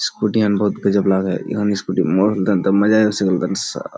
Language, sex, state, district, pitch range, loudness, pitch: Hindi, male, Bihar, Kishanganj, 95-105 Hz, -17 LUFS, 100 Hz